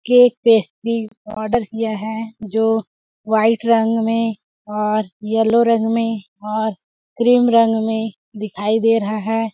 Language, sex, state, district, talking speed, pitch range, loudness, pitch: Hindi, female, Chhattisgarh, Balrampur, 140 wpm, 215-230 Hz, -18 LUFS, 225 Hz